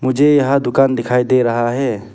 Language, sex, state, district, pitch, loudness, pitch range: Hindi, male, Arunachal Pradesh, Papum Pare, 130 Hz, -15 LUFS, 120-135 Hz